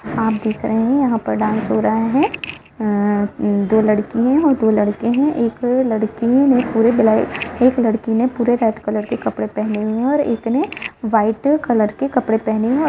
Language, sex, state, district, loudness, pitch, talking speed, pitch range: Hindi, female, Jharkhand, Jamtara, -17 LUFS, 225 Hz, 195 wpm, 215-250 Hz